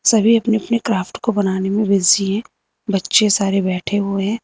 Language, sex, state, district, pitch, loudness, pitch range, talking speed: Hindi, female, Uttar Pradesh, Lucknow, 205 Hz, -17 LUFS, 195-220 Hz, 190 wpm